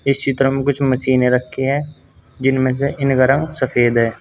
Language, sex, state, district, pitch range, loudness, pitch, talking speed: Hindi, male, Uttar Pradesh, Saharanpur, 125-140 Hz, -17 LUFS, 135 Hz, 185 wpm